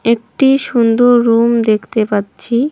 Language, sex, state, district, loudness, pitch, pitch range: Bengali, female, West Bengal, Cooch Behar, -13 LUFS, 235 Hz, 225-245 Hz